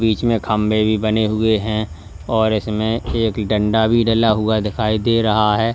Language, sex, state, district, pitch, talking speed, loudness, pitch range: Hindi, male, Uttar Pradesh, Lalitpur, 110 Hz, 190 wpm, -17 LUFS, 110-115 Hz